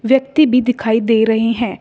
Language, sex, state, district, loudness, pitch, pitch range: Hindi, female, Uttar Pradesh, Shamli, -14 LUFS, 230 Hz, 225-255 Hz